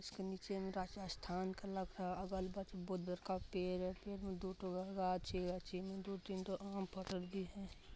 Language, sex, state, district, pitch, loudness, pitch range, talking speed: Hindi, female, Bihar, Madhepura, 190 Hz, -45 LUFS, 185-195 Hz, 205 wpm